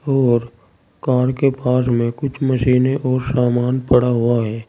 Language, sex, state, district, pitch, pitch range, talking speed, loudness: Hindi, male, Uttar Pradesh, Saharanpur, 125 Hz, 120-130 Hz, 155 wpm, -17 LUFS